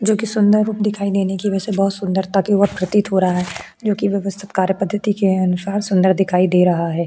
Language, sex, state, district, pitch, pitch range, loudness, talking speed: Hindi, female, Goa, North and South Goa, 195 Hz, 185-205 Hz, -18 LUFS, 245 wpm